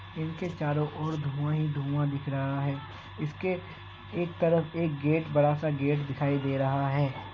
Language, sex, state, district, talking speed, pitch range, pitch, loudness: Hindi, male, Bihar, Kishanganj, 165 wpm, 140-155 Hz, 145 Hz, -30 LUFS